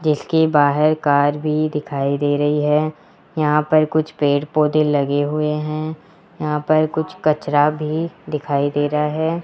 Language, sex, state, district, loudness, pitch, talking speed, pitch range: Hindi, female, Rajasthan, Jaipur, -18 LUFS, 150 Hz, 160 wpm, 145-155 Hz